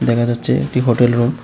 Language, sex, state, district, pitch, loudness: Bengali, male, Tripura, West Tripura, 120 Hz, -16 LUFS